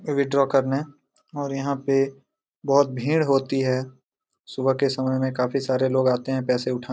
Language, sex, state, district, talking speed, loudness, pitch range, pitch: Hindi, male, Jharkhand, Jamtara, 175 wpm, -23 LUFS, 130-140 Hz, 135 Hz